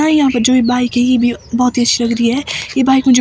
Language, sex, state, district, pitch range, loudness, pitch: Hindi, female, Himachal Pradesh, Shimla, 240-265 Hz, -13 LUFS, 250 Hz